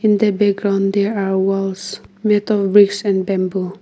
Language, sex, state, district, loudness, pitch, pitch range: English, female, Nagaland, Kohima, -17 LUFS, 200 Hz, 195-205 Hz